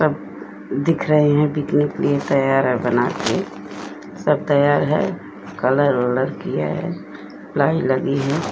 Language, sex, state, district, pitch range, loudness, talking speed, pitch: Hindi, female, Uttar Pradesh, Etah, 130-150 Hz, -19 LUFS, 140 wpm, 140 Hz